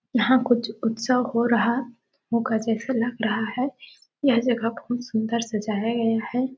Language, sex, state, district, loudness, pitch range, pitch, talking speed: Hindi, female, Chhattisgarh, Sarguja, -24 LUFS, 225-250 Hz, 235 Hz, 155 wpm